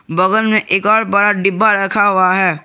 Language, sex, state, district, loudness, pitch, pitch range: Hindi, male, Jharkhand, Garhwa, -13 LUFS, 195 Hz, 185-215 Hz